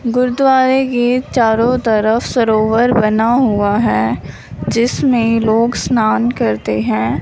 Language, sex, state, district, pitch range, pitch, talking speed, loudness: Hindi, female, Punjab, Fazilka, 220-245 Hz, 235 Hz, 110 wpm, -14 LUFS